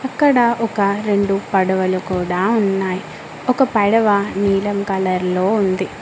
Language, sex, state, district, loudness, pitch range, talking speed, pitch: Telugu, female, Telangana, Mahabubabad, -17 LUFS, 190-215 Hz, 120 wpm, 200 Hz